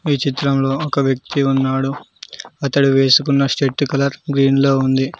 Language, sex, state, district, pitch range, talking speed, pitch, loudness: Telugu, male, Telangana, Mahabubabad, 135-140 Hz, 140 wpm, 140 Hz, -16 LUFS